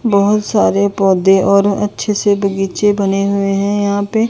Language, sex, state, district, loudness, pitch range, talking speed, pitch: Hindi, female, Chandigarh, Chandigarh, -14 LUFS, 195-205 Hz, 165 wpm, 200 Hz